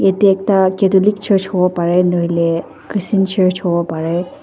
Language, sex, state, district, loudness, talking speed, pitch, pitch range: Nagamese, female, Nagaland, Dimapur, -15 LUFS, 175 wpm, 185 Hz, 175-195 Hz